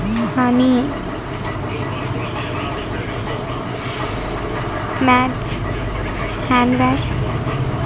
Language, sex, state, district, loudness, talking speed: Telugu, female, Andhra Pradesh, Annamaya, -19 LUFS, 40 wpm